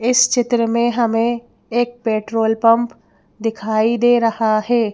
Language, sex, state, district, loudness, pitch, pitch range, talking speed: Hindi, female, Madhya Pradesh, Bhopal, -17 LUFS, 230 Hz, 225-240 Hz, 135 wpm